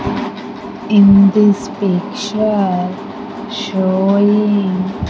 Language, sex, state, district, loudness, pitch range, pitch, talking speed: English, female, Andhra Pradesh, Sri Satya Sai, -14 LUFS, 190-210 Hz, 200 Hz, 60 wpm